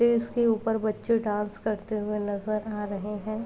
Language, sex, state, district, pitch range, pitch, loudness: Hindi, female, Uttar Pradesh, Varanasi, 210-225 Hz, 215 Hz, -28 LUFS